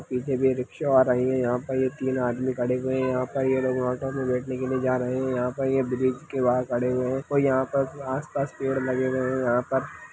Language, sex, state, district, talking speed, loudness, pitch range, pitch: Hindi, male, Chhattisgarh, Kabirdham, 270 wpm, -25 LUFS, 125-135 Hz, 130 Hz